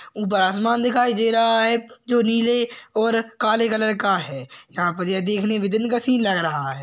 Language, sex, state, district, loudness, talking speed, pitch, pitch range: Hindi, male, Maharashtra, Chandrapur, -19 LUFS, 210 wpm, 220 Hz, 195-235 Hz